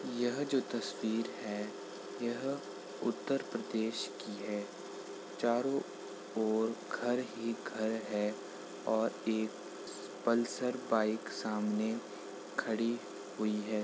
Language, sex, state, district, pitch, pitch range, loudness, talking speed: Hindi, male, Uttar Pradesh, Ghazipur, 110 Hz, 105-120 Hz, -37 LUFS, 100 wpm